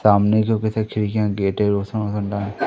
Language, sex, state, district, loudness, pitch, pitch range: Hindi, male, Madhya Pradesh, Umaria, -20 LUFS, 105 Hz, 100-110 Hz